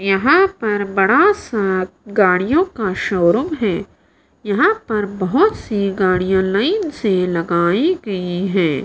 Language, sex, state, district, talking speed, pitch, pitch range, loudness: Hindi, female, Bihar, Kaimur, 120 wpm, 200 Hz, 185-270 Hz, -17 LUFS